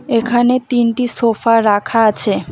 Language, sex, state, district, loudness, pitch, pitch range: Bengali, female, West Bengal, Alipurduar, -14 LUFS, 235 Hz, 225-245 Hz